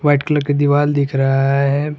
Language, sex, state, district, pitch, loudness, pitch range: Hindi, male, Jharkhand, Garhwa, 145 Hz, -16 LUFS, 140-145 Hz